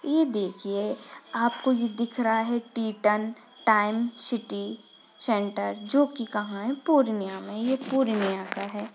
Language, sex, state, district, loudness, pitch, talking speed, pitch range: Hindi, female, Bihar, Purnia, -27 LUFS, 225 Hz, 140 wpm, 205-240 Hz